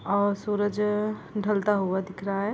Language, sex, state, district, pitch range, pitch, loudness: Hindi, female, Bihar, Gopalganj, 200-210 Hz, 205 Hz, -27 LUFS